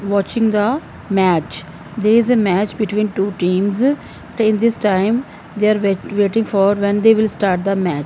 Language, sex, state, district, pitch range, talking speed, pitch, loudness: English, female, Punjab, Fazilka, 195-220 Hz, 170 wpm, 205 Hz, -17 LUFS